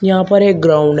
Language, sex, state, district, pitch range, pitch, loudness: Hindi, male, Uttar Pradesh, Shamli, 155-195 Hz, 185 Hz, -12 LUFS